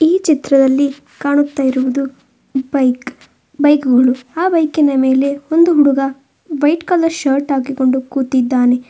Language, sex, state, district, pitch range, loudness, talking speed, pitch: Kannada, female, Karnataka, Bangalore, 260-295 Hz, -14 LUFS, 110 wpm, 275 Hz